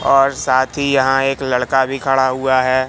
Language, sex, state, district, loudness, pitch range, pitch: Hindi, male, Madhya Pradesh, Katni, -16 LUFS, 130-135 Hz, 135 Hz